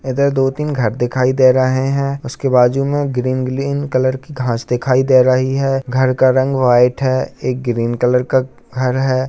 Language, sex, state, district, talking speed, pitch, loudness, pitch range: Hindi, male, Bihar, Bhagalpur, 200 wpm, 130 Hz, -15 LUFS, 125-135 Hz